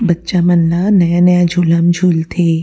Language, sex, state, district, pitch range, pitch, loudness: Chhattisgarhi, female, Chhattisgarh, Rajnandgaon, 170-180 Hz, 175 Hz, -12 LUFS